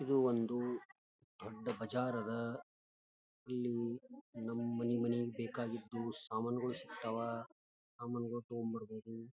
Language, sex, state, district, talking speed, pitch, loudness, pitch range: Kannada, male, Karnataka, Gulbarga, 95 wpm, 120 Hz, -41 LUFS, 115-120 Hz